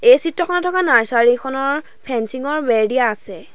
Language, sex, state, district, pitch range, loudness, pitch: Assamese, female, Assam, Sonitpur, 235-350 Hz, -17 LUFS, 265 Hz